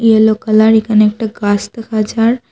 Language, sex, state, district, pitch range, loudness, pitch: Bengali, female, Assam, Hailakandi, 215-225 Hz, -12 LUFS, 220 Hz